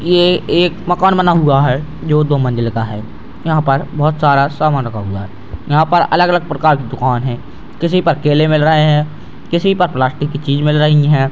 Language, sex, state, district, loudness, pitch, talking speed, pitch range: Hindi, male, Bihar, Purnia, -14 LUFS, 150 Hz, 210 wpm, 130-160 Hz